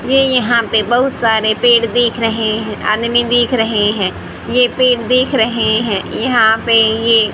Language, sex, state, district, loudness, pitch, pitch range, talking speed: Hindi, female, Haryana, Rohtak, -13 LUFS, 230 Hz, 220-245 Hz, 170 wpm